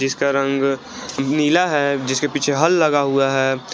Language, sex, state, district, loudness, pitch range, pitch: Hindi, male, Jharkhand, Garhwa, -18 LUFS, 135-145 Hz, 140 Hz